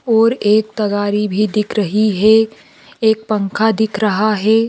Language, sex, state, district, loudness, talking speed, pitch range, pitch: Hindi, female, Rajasthan, Nagaur, -15 LUFS, 155 wpm, 210-220 Hz, 215 Hz